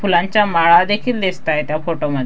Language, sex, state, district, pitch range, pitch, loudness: Marathi, female, Maharashtra, Dhule, 155-200 Hz, 175 Hz, -16 LUFS